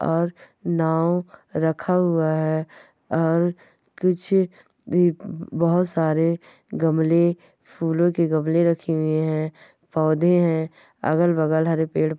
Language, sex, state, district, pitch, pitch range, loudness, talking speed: Hindi, male, West Bengal, Purulia, 165 Hz, 160-175 Hz, -22 LUFS, 110 wpm